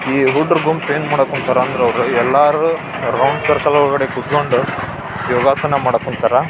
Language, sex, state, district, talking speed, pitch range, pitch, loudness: Kannada, male, Karnataka, Belgaum, 150 wpm, 135-150 Hz, 145 Hz, -15 LUFS